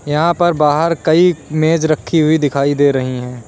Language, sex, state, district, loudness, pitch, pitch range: Hindi, male, Uttar Pradesh, Lalitpur, -14 LUFS, 155 Hz, 145-165 Hz